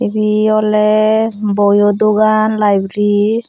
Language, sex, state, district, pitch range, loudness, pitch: Chakma, female, Tripura, Unakoti, 205-215 Hz, -12 LUFS, 215 Hz